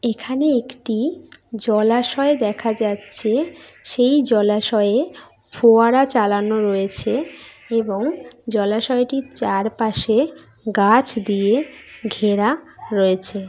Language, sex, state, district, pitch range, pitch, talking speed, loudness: Bengali, female, West Bengal, Jhargram, 210-260 Hz, 225 Hz, 75 wpm, -19 LUFS